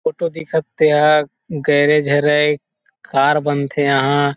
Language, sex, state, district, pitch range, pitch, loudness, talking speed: Chhattisgarhi, male, Chhattisgarh, Rajnandgaon, 145-155 Hz, 150 Hz, -16 LUFS, 125 wpm